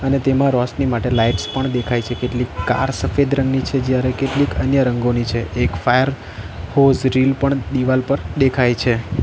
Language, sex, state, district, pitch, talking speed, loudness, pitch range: Gujarati, male, Gujarat, Valsad, 130 Hz, 175 wpm, -18 LUFS, 120-135 Hz